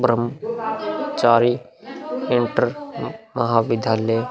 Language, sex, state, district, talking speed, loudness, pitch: Hindi, male, Bihar, Vaishali, 70 wpm, -21 LUFS, 120 Hz